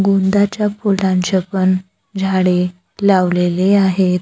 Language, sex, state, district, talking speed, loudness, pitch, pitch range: Marathi, female, Maharashtra, Gondia, 85 wpm, -15 LUFS, 190 Hz, 185-195 Hz